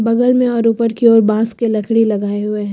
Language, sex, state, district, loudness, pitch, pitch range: Hindi, female, Uttar Pradesh, Lucknow, -14 LUFS, 225 Hz, 215-230 Hz